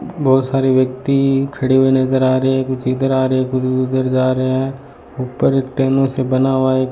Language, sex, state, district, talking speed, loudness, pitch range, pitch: Hindi, male, Rajasthan, Bikaner, 245 wpm, -16 LUFS, 130-135 Hz, 130 Hz